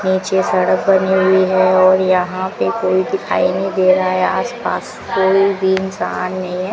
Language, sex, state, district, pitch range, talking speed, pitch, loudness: Hindi, female, Rajasthan, Bikaner, 185-190 Hz, 185 wpm, 185 Hz, -15 LUFS